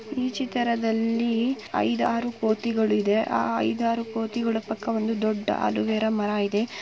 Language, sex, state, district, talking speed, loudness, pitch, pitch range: Kannada, female, Karnataka, Mysore, 105 wpm, -25 LUFS, 220 Hz, 205-230 Hz